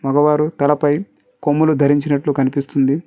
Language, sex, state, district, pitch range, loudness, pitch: Telugu, male, Telangana, Mahabubabad, 140-150 Hz, -17 LUFS, 145 Hz